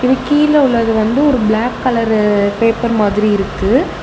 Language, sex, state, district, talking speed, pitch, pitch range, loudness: Tamil, female, Tamil Nadu, Nilgiris, 150 wpm, 230 Hz, 215-255 Hz, -13 LUFS